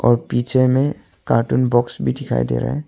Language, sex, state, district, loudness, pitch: Hindi, male, Arunachal Pradesh, Longding, -18 LUFS, 120 Hz